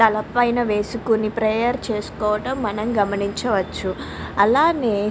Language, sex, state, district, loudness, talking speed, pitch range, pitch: Telugu, female, Andhra Pradesh, Krishna, -21 LUFS, 105 wpm, 210-240 Hz, 220 Hz